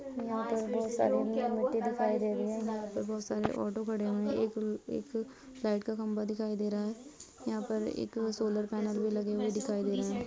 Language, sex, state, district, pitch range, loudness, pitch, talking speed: Hindi, female, Bihar, Darbhanga, 210-225 Hz, -34 LUFS, 220 Hz, 220 wpm